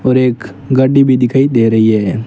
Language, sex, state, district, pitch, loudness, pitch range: Hindi, male, Rajasthan, Bikaner, 130 Hz, -11 LUFS, 115-130 Hz